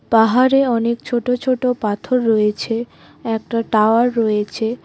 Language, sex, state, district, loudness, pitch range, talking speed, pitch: Bengali, female, West Bengal, Cooch Behar, -17 LUFS, 220-250 Hz, 110 wpm, 230 Hz